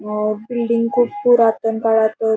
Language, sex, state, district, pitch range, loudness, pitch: Marathi, female, Maharashtra, Pune, 220-235 Hz, -17 LUFS, 225 Hz